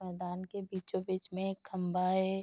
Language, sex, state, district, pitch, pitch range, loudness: Hindi, female, Bihar, Saharsa, 185 Hz, 180-190 Hz, -36 LUFS